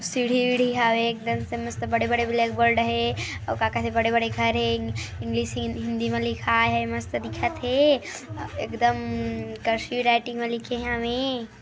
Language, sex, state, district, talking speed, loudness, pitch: Hindi, female, Chhattisgarh, Kabirdham, 170 wpm, -25 LUFS, 120 Hz